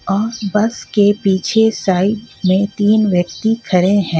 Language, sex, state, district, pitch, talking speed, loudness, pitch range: Hindi, female, Jharkhand, Ranchi, 205 Hz, 145 wpm, -15 LUFS, 190-215 Hz